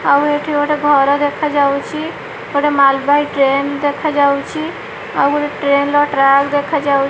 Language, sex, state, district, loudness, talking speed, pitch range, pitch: Odia, female, Odisha, Malkangiri, -15 LUFS, 125 wpm, 280-295 Hz, 285 Hz